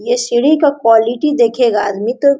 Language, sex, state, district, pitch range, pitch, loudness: Hindi, female, Jharkhand, Sahebganj, 230-295 Hz, 245 Hz, -13 LUFS